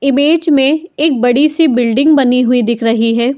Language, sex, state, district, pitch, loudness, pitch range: Hindi, female, Uttar Pradesh, Muzaffarnagar, 270 Hz, -11 LUFS, 245-305 Hz